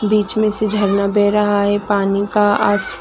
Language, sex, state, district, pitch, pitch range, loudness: Hindi, female, Chhattisgarh, Raigarh, 205 Hz, 200-210 Hz, -16 LUFS